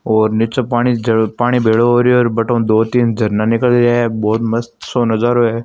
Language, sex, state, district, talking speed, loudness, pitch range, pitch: Marwari, male, Rajasthan, Nagaur, 210 wpm, -14 LUFS, 110-120 Hz, 115 Hz